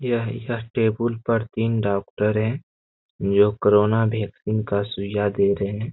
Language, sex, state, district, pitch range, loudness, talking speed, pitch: Hindi, male, Bihar, Jamui, 100-115 Hz, -22 LUFS, 150 wpm, 110 Hz